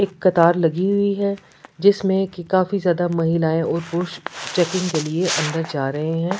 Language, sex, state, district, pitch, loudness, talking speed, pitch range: Hindi, female, Delhi, New Delhi, 175 Hz, -20 LUFS, 180 wpm, 165-190 Hz